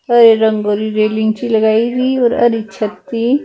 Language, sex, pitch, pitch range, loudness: Punjabi, female, 225 Hz, 215-240 Hz, -14 LUFS